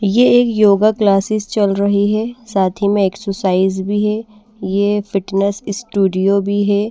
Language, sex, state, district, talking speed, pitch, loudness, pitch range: Hindi, female, Bihar, Patna, 155 wpm, 200 Hz, -15 LUFS, 195-215 Hz